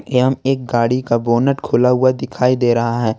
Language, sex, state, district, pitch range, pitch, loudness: Hindi, male, Jharkhand, Ranchi, 120-130 Hz, 125 Hz, -16 LUFS